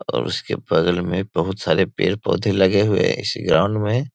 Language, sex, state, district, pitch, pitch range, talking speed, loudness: Hindi, male, Bihar, Sitamarhi, 95 Hz, 90-105 Hz, 190 wpm, -20 LUFS